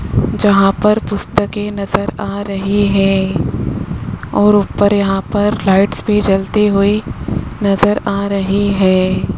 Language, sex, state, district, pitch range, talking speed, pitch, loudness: Hindi, male, Rajasthan, Jaipur, 195-205 Hz, 120 wpm, 200 Hz, -14 LUFS